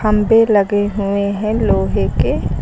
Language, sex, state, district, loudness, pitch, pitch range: Hindi, female, Uttar Pradesh, Lucknow, -15 LUFS, 205 Hz, 200-215 Hz